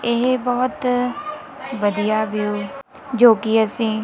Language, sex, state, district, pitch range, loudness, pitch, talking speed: Punjabi, female, Punjab, Kapurthala, 215-255 Hz, -19 LUFS, 235 Hz, 105 wpm